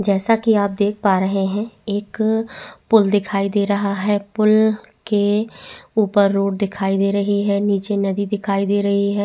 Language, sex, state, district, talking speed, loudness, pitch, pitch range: Hindi, female, Chhattisgarh, Bastar, 175 wpm, -18 LUFS, 205 Hz, 200-210 Hz